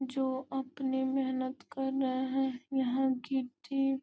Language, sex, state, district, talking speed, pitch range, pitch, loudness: Hindi, female, Bihar, Gopalganj, 135 wpm, 260-270 Hz, 265 Hz, -33 LUFS